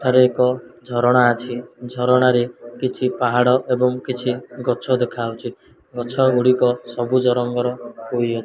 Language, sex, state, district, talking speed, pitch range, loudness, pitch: Odia, male, Odisha, Malkangiri, 120 wpm, 120-125 Hz, -19 LUFS, 125 Hz